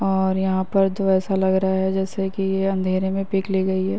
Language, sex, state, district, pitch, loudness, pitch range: Hindi, female, Uttar Pradesh, Varanasi, 190 Hz, -21 LUFS, 190-195 Hz